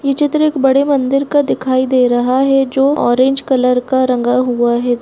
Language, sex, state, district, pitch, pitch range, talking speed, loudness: Hindi, female, Bihar, Jamui, 260 Hz, 250-275 Hz, 205 wpm, -13 LUFS